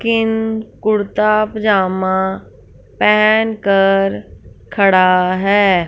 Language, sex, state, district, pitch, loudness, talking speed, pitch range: Hindi, female, Punjab, Fazilka, 195 Hz, -14 LUFS, 60 wpm, 185-215 Hz